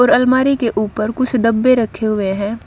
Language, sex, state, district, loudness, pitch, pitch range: Hindi, female, Punjab, Kapurthala, -15 LUFS, 230 Hz, 215-255 Hz